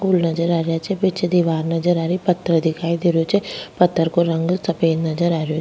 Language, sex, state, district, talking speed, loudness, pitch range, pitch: Rajasthani, female, Rajasthan, Nagaur, 235 wpm, -19 LUFS, 165-180 Hz, 170 Hz